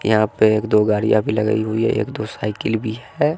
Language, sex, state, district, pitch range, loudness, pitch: Hindi, male, Bihar, West Champaran, 105-110 Hz, -19 LUFS, 110 Hz